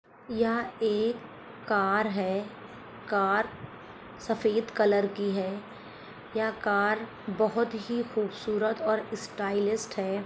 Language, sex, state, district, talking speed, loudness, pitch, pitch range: Hindi, female, Jharkhand, Sahebganj, 90 wpm, -29 LUFS, 215 Hz, 205-225 Hz